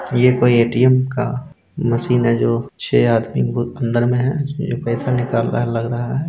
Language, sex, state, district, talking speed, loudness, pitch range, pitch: Hindi, male, Bihar, Saran, 200 wpm, -18 LUFS, 120-130 Hz, 120 Hz